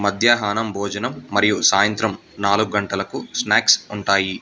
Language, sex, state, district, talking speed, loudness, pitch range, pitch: Telugu, male, Telangana, Hyderabad, 110 wpm, -19 LUFS, 100-105 Hz, 100 Hz